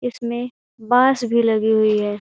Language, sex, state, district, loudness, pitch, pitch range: Hindi, female, Uttar Pradesh, Ghazipur, -18 LUFS, 235 Hz, 220-245 Hz